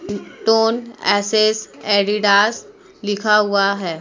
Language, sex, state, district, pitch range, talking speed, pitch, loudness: Hindi, female, Uttar Pradesh, Muzaffarnagar, 200-220 Hz, 90 wpm, 210 Hz, -17 LUFS